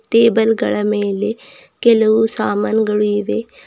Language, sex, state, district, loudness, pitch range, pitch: Kannada, female, Karnataka, Bidar, -16 LUFS, 210-225 Hz, 220 Hz